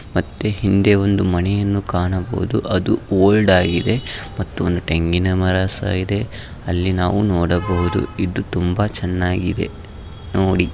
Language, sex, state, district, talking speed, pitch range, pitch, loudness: Kannada, male, Karnataka, Raichur, 110 wpm, 90-100 Hz, 95 Hz, -19 LUFS